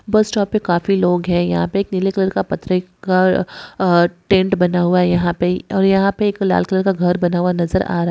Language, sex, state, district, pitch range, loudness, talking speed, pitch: Hindi, female, West Bengal, Jalpaiguri, 175-195 Hz, -17 LUFS, 245 wpm, 185 Hz